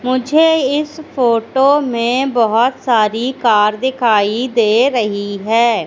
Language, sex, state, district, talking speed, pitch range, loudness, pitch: Hindi, female, Madhya Pradesh, Katni, 110 wpm, 225-265 Hz, -14 LUFS, 240 Hz